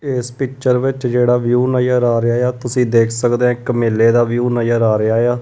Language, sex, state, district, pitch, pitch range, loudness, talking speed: Punjabi, male, Punjab, Kapurthala, 120 Hz, 120-125 Hz, -15 LUFS, 230 wpm